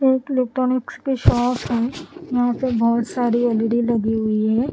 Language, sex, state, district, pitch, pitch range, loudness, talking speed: Hindi, female, Bihar, Katihar, 245 Hz, 235-255 Hz, -20 LUFS, 165 wpm